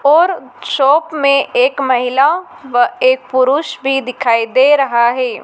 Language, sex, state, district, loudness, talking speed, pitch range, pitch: Hindi, female, Madhya Pradesh, Dhar, -13 LUFS, 145 wpm, 255-290 Hz, 270 Hz